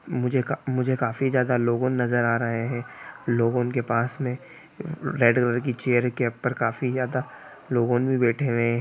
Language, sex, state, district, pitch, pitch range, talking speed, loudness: Hindi, male, Bihar, Gopalganj, 125 Hz, 120-130 Hz, 175 wpm, -24 LUFS